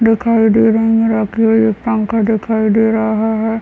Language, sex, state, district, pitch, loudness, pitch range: Hindi, male, Bihar, Muzaffarpur, 225 Hz, -13 LUFS, 220-225 Hz